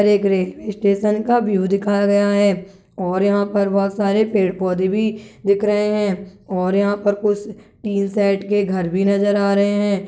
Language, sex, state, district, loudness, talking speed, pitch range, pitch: Hindi, male, Chhattisgarh, Kabirdham, -18 LUFS, 190 wpm, 195-205 Hz, 200 Hz